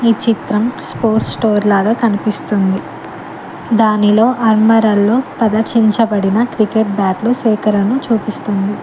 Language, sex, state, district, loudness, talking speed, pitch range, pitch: Telugu, female, Telangana, Mahabubabad, -14 LUFS, 95 wpm, 210-230 Hz, 220 Hz